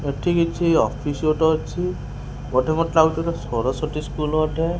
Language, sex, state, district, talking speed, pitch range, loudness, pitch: Odia, male, Odisha, Khordha, 150 wpm, 140-165 Hz, -21 LUFS, 155 Hz